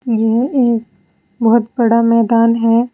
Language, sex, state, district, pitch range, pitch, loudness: Hindi, female, Uttar Pradesh, Saharanpur, 225-235 Hz, 230 Hz, -13 LUFS